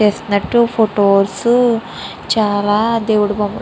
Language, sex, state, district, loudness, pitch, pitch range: Telugu, female, Andhra Pradesh, Srikakulam, -15 LUFS, 215 Hz, 205-230 Hz